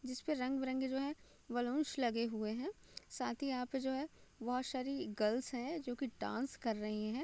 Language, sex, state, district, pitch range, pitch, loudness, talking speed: Hindi, female, Bihar, Gopalganj, 235-270 Hz, 255 Hz, -40 LUFS, 200 wpm